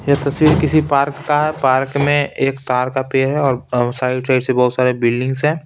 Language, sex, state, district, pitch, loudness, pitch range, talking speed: Hindi, male, Bihar, Patna, 135 Hz, -16 LUFS, 125-145 Hz, 225 wpm